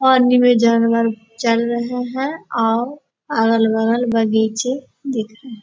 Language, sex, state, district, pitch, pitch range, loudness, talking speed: Hindi, female, Bihar, Gopalganj, 235 Hz, 225-250 Hz, -17 LUFS, 130 wpm